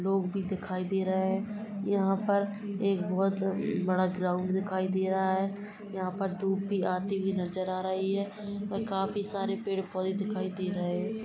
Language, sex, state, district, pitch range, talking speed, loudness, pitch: Hindi, female, Jharkhand, Jamtara, 185-200 Hz, 185 wpm, -31 LUFS, 195 Hz